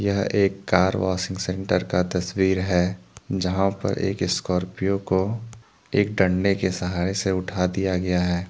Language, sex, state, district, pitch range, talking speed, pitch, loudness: Hindi, male, Jharkhand, Deoghar, 90-100 Hz, 155 wpm, 95 Hz, -23 LUFS